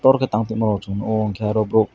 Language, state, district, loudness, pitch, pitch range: Kokborok, Tripura, West Tripura, -20 LUFS, 110 Hz, 105-110 Hz